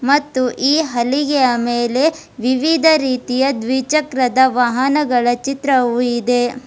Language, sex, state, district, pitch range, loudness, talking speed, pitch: Kannada, female, Karnataka, Bidar, 245-280 Hz, -16 LUFS, 90 wpm, 260 Hz